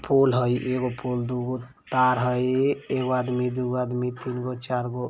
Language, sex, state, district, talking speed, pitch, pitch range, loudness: Maithili, male, Bihar, Vaishali, 165 wpm, 125 Hz, 125-130 Hz, -25 LUFS